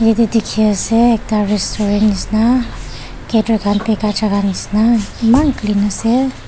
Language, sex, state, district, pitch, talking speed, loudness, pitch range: Nagamese, female, Nagaland, Dimapur, 220 Hz, 120 wpm, -15 LUFS, 210-230 Hz